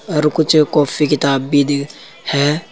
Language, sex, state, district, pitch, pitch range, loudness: Hindi, male, Uttar Pradesh, Saharanpur, 150 Hz, 140-150 Hz, -15 LUFS